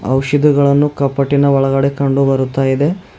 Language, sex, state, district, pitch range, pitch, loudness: Kannada, male, Karnataka, Bidar, 135-145 Hz, 140 Hz, -14 LUFS